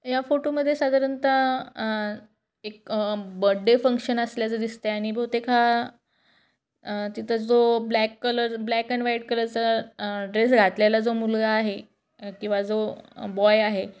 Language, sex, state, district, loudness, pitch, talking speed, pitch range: Marathi, female, Maharashtra, Chandrapur, -24 LUFS, 225 Hz, 135 wpm, 215-240 Hz